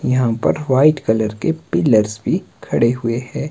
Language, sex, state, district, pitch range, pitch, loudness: Hindi, male, Himachal Pradesh, Shimla, 105-130 Hz, 115 Hz, -17 LUFS